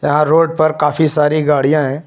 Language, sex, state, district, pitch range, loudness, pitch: Hindi, male, Uttar Pradesh, Lucknow, 150-155 Hz, -13 LUFS, 150 Hz